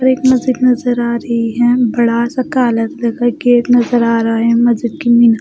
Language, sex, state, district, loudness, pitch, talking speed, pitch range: Hindi, female, Bihar, West Champaran, -13 LUFS, 240 Hz, 200 wpm, 235-245 Hz